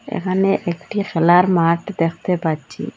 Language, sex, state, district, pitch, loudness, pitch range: Bengali, female, Assam, Hailakandi, 180 Hz, -18 LUFS, 165-195 Hz